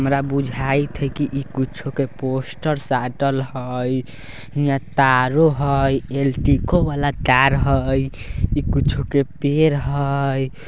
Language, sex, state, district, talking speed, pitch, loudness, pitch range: Bajjika, male, Bihar, Vaishali, 140 wpm, 140 Hz, -20 LUFS, 130-140 Hz